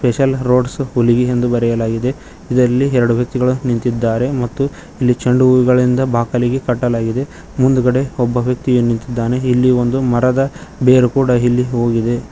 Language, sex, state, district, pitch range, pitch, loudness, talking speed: Kannada, male, Karnataka, Koppal, 120-130 Hz, 125 Hz, -15 LUFS, 130 wpm